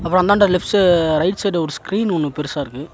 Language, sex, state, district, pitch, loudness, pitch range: Tamil, male, Tamil Nadu, Nilgiris, 175 Hz, -17 LUFS, 155-195 Hz